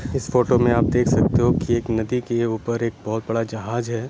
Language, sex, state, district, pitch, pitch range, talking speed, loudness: Hindi, male, Jharkhand, Sahebganj, 115 Hz, 110-120 Hz, 250 wpm, -21 LUFS